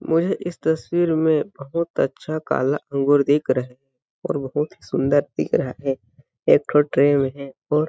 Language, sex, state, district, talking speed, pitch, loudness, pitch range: Hindi, male, Chhattisgarh, Balrampur, 190 wpm, 145 Hz, -21 LUFS, 135-160 Hz